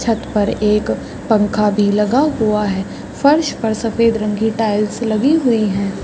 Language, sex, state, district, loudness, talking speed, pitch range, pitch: Hindi, female, Chhattisgarh, Bastar, -16 LUFS, 170 wpm, 210-230 Hz, 215 Hz